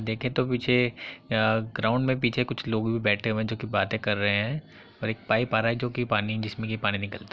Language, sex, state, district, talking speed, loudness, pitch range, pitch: Hindi, male, Uttar Pradesh, Muzaffarnagar, 260 wpm, -27 LUFS, 110-120 Hz, 110 Hz